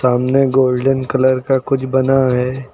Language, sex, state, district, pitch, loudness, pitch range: Hindi, male, Uttar Pradesh, Lucknow, 130 Hz, -15 LUFS, 125-135 Hz